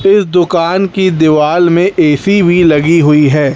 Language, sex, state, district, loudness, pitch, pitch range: Hindi, male, Chhattisgarh, Raipur, -9 LUFS, 170 Hz, 150-185 Hz